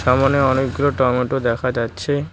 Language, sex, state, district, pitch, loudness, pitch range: Bengali, male, West Bengal, Cooch Behar, 130 Hz, -18 LUFS, 125-140 Hz